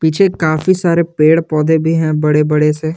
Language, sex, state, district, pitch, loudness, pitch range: Hindi, male, Jharkhand, Garhwa, 160 Hz, -13 LUFS, 155-165 Hz